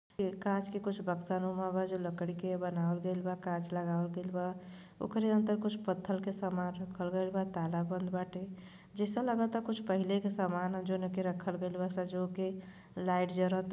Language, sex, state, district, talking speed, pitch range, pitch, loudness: Bhojpuri, female, Uttar Pradesh, Gorakhpur, 190 wpm, 180-190 Hz, 185 Hz, -36 LUFS